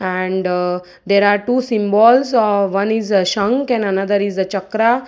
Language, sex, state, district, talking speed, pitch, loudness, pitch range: English, female, Gujarat, Valsad, 175 wpm, 200 Hz, -16 LUFS, 190-225 Hz